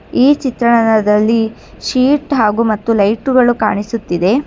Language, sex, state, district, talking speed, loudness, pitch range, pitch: Kannada, female, Karnataka, Bangalore, 95 wpm, -13 LUFS, 215-255 Hz, 230 Hz